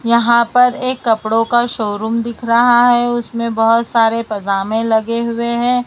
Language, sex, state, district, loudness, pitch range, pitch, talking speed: Hindi, female, Maharashtra, Mumbai Suburban, -15 LUFS, 225-240 Hz, 235 Hz, 165 wpm